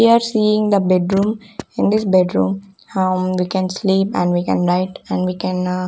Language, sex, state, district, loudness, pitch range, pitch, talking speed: English, female, Chandigarh, Chandigarh, -17 LUFS, 185-205 Hz, 185 Hz, 205 wpm